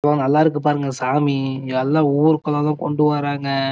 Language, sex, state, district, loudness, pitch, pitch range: Tamil, male, Karnataka, Chamarajanagar, -19 LUFS, 145 Hz, 135-150 Hz